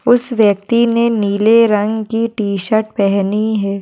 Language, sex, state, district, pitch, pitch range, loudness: Hindi, female, Maharashtra, Nagpur, 215 Hz, 200-230 Hz, -14 LUFS